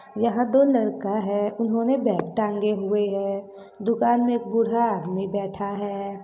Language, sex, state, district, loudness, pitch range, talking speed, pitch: Hindi, female, Bihar, Gopalganj, -24 LUFS, 200-230 Hz, 155 wpm, 210 Hz